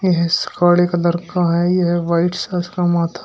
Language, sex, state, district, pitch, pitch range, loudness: Hindi, male, Uttar Pradesh, Shamli, 175 Hz, 170-180 Hz, -17 LUFS